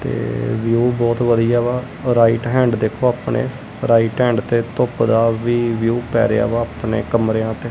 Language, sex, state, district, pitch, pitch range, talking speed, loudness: Punjabi, male, Punjab, Kapurthala, 115 Hz, 115-120 Hz, 170 wpm, -17 LUFS